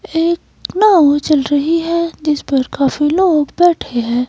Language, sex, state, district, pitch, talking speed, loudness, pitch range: Hindi, female, Himachal Pradesh, Shimla, 305 Hz, 155 wpm, -14 LUFS, 285-340 Hz